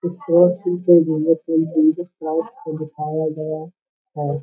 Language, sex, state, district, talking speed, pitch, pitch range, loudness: Hindi, male, Bihar, Darbhanga, 135 wpm, 160 Hz, 155-175 Hz, -19 LUFS